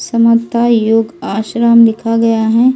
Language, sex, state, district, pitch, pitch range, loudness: Hindi, female, Delhi, New Delhi, 230 Hz, 225-235 Hz, -11 LUFS